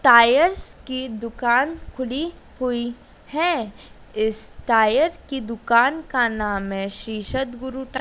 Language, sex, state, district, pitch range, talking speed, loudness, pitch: Hindi, female, Madhya Pradesh, Dhar, 225-265 Hz, 120 wpm, -22 LUFS, 245 Hz